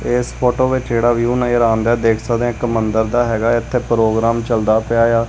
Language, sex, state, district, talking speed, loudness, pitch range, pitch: Punjabi, male, Punjab, Kapurthala, 205 wpm, -16 LUFS, 115-120 Hz, 115 Hz